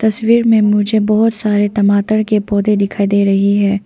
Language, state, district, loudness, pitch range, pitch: Hindi, Arunachal Pradesh, Papum Pare, -13 LUFS, 200-215 Hz, 210 Hz